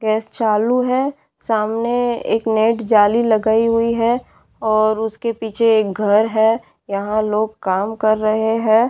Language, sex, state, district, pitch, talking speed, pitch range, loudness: Hindi, female, Bihar, Madhepura, 220 Hz, 150 wpm, 215-230 Hz, -17 LUFS